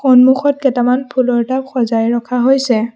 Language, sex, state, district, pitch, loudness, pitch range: Assamese, female, Assam, Sonitpur, 250 Hz, -14 LUFS, 240-265 Hz